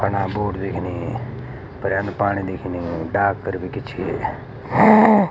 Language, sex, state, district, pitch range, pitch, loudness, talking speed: Garhwali, male, Uttarakhand, Uttarkashi, 95-125 Hz, 100 Hz, -20 LUFS, 115 wpm